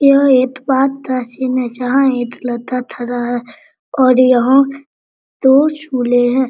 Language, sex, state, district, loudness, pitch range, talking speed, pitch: Hindi, female, Bihar, Araria, -14 LUFS, 245-270 Hz, 140 wpm, 255 Hz